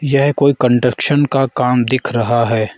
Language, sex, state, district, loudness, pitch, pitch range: Hindi, male, Arunachal Pradesh, Lower Dibang Valley, -14 LUFS, 125 Hz, 120-140 Hz